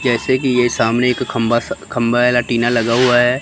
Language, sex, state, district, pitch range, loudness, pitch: Hindi, female, Chandigarh, Chandigarh, 120-125 Hz, -15 LUFS, 120 Hz